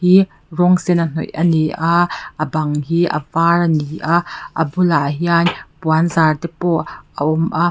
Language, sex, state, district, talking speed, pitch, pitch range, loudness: Mizo, female, Mizoram, Aizawl, 185 wpm, 165 Hz, 155-175 Hz, -17 LUFS